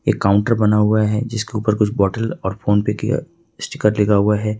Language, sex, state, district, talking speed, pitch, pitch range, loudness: Hindi, male, Jharkhand, Ranchi, 220 wpm, 105 Hz, 105-115 Hz, -18 LUFS